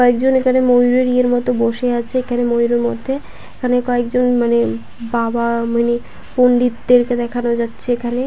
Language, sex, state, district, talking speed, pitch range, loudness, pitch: Bengali, female, West Bengal, Paschim Medinipur, 145 wpm, 235-250 Hz, -16 LUFS, 245 Hz